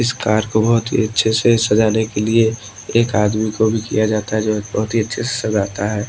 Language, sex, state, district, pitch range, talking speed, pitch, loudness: Hindi, male, Maharashtra, Washim, 105-115 Hz, 245 wpm, 110 Hz, -17 LUFS